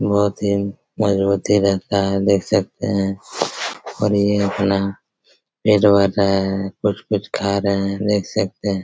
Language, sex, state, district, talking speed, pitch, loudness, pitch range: Hindi, male, Chhattisgarh, Raigarh, 150 wpm, 100 Hz, -19 LUFS, 100-105 Hz